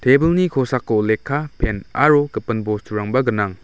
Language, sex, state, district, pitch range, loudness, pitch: Garo, male, Meghalaya, West Garo Hills, 105-145 Hz, -19 LUFS, 125 Hz